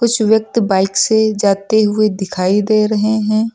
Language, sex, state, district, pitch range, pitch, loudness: Hindi, female, Uttar Pradesh, Lucknow, 200-220 Hz, 215 Hz, -14 LUFS